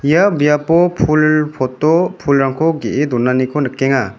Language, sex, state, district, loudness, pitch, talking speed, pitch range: Garo, male, Meghalaya, West Garo Hills, -14 LUFS, 150 Hz, 115 wpm, 135-160 Hz